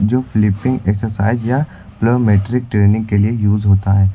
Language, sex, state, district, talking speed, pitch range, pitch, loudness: Hindi, male, Uttar Pradesh, Lucknow, 160 wpm, 100-115 Hz, 105 Hz, -15 LUFS